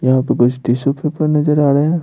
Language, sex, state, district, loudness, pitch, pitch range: Hindi, male, Bihar, Patna, -15 LUFS, 140 Hz, 130-150 Hz